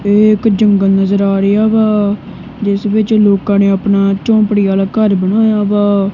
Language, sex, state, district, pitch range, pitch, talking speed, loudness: Punjabi, female, Punjab, Kapurthala, 200-215 Hz, 205 Hz, 155 wpm, -12 LUFS